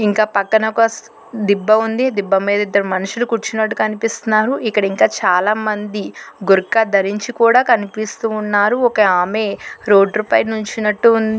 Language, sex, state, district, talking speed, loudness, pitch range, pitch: Telugu, female, Telangana, Hyderabad, 135 wpm, -16 LUFS, 205-225 Hz, 215 Hz